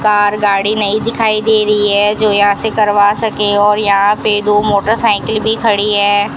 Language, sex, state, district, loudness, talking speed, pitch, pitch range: Hindi, female, Rajasthan, Bikaner, -12 LUFS, 190 wpm, 210 Hz, 205-215 Hz